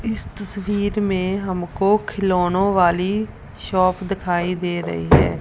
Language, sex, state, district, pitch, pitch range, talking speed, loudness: Hindi, female, Punjab, Fazilka, 185 Hz, 175-200 Hz, 120 wpm, -20 LUFS